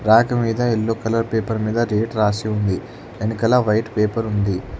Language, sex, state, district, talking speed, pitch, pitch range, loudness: Telugu, male, Telangana, Hyderabad, 165 wpm, 110 Hz, 105-115 Hz, -20 LUFS